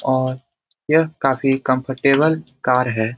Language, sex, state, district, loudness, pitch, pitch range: Hindi, male, Bihar, Jamui, -18 LUFS, 135 Hz, 130-140 Hz